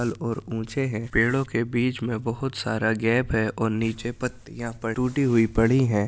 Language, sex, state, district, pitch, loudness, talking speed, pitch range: Hindi, male, Uttar Pradesh, Jyotiba Phule Nagar, 115 Hz, -25 LUFS, 185 wpm, 110-125 Hz